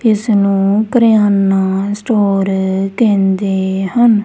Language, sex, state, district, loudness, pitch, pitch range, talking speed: Punjabi, female, Punjab, Kapurthala, -13 LUFS, 200 Hz, 195-215 Hz, 85 wpm